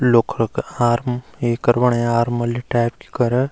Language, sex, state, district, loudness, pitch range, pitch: Garhwali, male, Uttarakhand, Uttarkashi, -19 LUFS, 120-125 Hz, 120 Hz